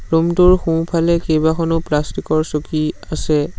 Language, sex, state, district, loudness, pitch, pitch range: Assamese, male, Assam, Sonitpur, -17 LUFS, 160 Hz, 155-165 Hz